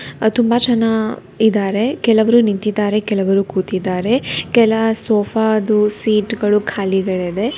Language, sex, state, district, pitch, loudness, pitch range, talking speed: Kannada, female, Karnataka, Bangalore, 215 Hz, -16 LUFS, 200-225 Hz, 120 wpm